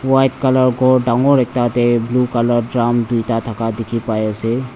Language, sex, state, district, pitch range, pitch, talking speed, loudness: Nagamese, male, Nagaland, Dimapur, 115-130 Hz, 120 Hz, 150 wpm, -16 LUFS